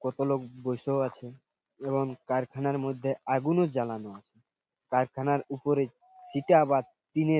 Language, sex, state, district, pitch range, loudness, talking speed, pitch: Bengali, male, West Bengal, Purulia, 130-140 Hz, -29 LUFS, 120 wpm, 135 Hz